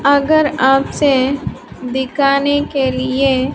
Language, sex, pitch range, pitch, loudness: Hindi, female, 265-285 Hz, 275 Hz, -15 LUFS